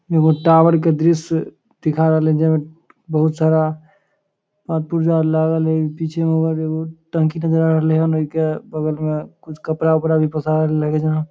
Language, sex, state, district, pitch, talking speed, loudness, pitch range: Maithili, male, Bihar, Samastipur, 160 Hz, 170 wpm, -18 LUFS, 155-160 Hz